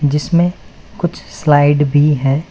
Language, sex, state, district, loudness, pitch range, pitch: Hindi, male, West Bengal, Alipurduar, -14 LUFS, 145-170 Hz, 150 Hz